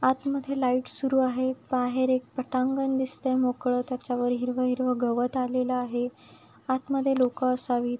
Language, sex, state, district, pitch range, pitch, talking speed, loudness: Marathi, female, Maharashtra, Sindhudurg, 250-260 Hz, 255 Hz, 140 wpm, -27 LUFS